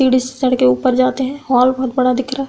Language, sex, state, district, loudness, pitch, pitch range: Hindi, female, Uttar Pradesh, Budaun, -15 LUFS, 255 Hz, 255-265 Hz